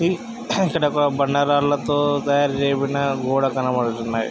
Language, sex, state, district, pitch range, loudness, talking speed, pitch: Telugu, male, Andhra Pradesh, Krishna, 135-145 Hz, -20 LUFS, 100 wpm, 140 Hz